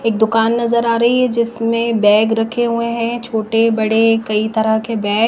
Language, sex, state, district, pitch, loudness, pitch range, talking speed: Hindi, female, Himachal Pradesh, Shimla, 225 Hz, -15 LUFS, 220-235 Hz, 205 wpm